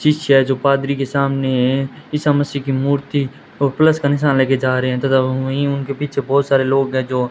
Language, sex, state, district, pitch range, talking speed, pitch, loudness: Hindi, male, Rajasthan, Bikaner, 130-140 Hz, 245 wpm, 135 Hz, -17 LUFS